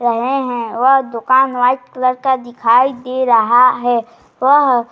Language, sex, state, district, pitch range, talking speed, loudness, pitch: Hindi, female, Bihar, Bhagalpur, 240-260 Hz, 160 wpm, -14 LUFS, 250 Hz